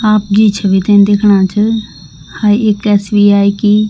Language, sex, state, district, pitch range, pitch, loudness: Garhwali, female, Uttarakhand, Tehri Garhwal, 200-210 Hz, 205 Hz, -10 LUFS